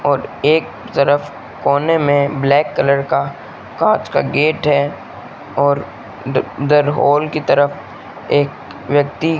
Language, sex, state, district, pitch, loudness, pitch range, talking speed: Hindi, male, Rajasthan, Bikaner, 145 Hz, -16 LUFS, 140-150 Hz, 125 wpm